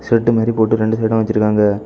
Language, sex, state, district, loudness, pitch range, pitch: Tamil, male, Tamil Nadu, Kanyakumari, -15 LUFS, 110-115 Hz, 110 Hz